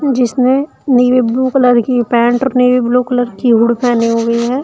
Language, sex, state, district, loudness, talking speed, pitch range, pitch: Hindi, female, Uttar Pradesh, Shamli, -12 LUFS, 170 wpm, 235-255 Hz, 250 Hz